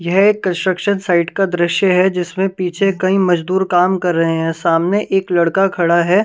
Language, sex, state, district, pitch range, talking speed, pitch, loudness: Hindi, female, Punjab, Kapurthala, 175-195 Hz, 190 wpm, 185 Hz, -15 LUFS